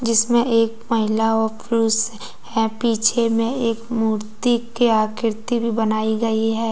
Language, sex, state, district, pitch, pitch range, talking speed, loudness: Hindi, female, Jharkhand, Deoghar, 225 Hz, 220-230 Hz, 145 wpm, -20 LUFS